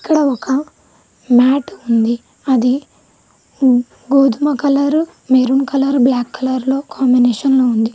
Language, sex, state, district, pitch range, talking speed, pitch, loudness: Telugu, female, Telangana, Mahabubabad, 250-275 Hz, 105 wpm, 265 Hz, -15 LUFS